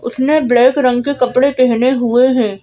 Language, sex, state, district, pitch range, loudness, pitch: Hindi, female, Madhya Pradesh, Bhopal, 245-260 Hz, -13 LUFS, 250 Hz